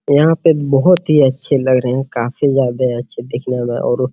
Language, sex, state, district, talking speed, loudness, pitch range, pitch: Hindi, male, Bihar, Araria, 220 wpm, -15 LUFS, 125-145 Hz, 130 Hz